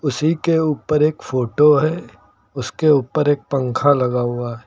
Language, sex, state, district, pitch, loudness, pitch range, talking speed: Hindi, male, Uttar Pradesh, Lucknow, 140 Hz, -18 LUFS, 125-150 Hz, 165 wpm